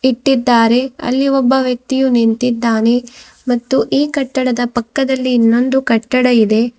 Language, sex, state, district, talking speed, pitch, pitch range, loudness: Kannada, female, Karnataka, Bidar, 105 wpm, 250 Hz, 235-265 Hz, -14 LUFS